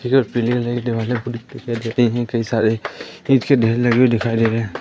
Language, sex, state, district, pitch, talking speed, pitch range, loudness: Hindi, male, Madhya Pradesh, Katni, 120 Hz, 135 wpm, 115-120 Hz, -18 LUFS